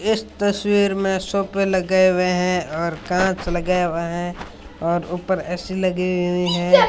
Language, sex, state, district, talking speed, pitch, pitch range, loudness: Hindi, female, Rajasthan, Bikaner, 155 wpm, 185 Hz, 175-190 Hz, -20 LUFS